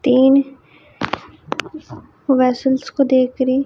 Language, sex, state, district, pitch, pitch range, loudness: Hindi, female, Chhattisgarh, Raipur, 265 Hz, 255-275 Hz, -17 LUFS